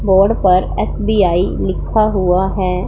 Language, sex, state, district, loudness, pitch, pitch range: Hindi, female, Punjab, Pathankot, -15 LUFS, 190 Hz, 180-200 Hz